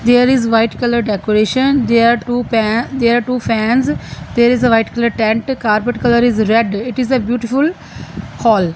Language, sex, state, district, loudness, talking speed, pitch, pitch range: English, female, Punjab, Fazilka, -14 LUFS, 185 wpm, 235 Hz, 220-245 Hz